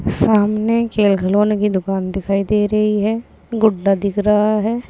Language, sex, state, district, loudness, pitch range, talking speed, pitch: Hindi, female, Uttar Pradesh, Saharanpur, -17 LUFS, 200-215 Hz, 160 wpm, 210 Hz